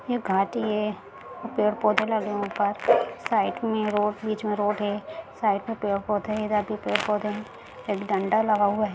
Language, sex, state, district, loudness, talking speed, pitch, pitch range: Hindi, female, Bihar, Jahanabad, -26 LUFS, 180 wpm, 210 Hz, 205-215 Hz